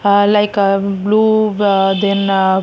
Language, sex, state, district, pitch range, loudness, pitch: Hindi, female, Maharashtra, Chandrapur, 195-205 Hz, -13 LUFS, 200 Hz